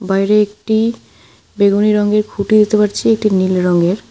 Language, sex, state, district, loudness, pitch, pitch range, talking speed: Bengali, female, West Bengal, Alipurduar, -14 LUFS, 210 Hz, 195-215 Hz, 160 wpm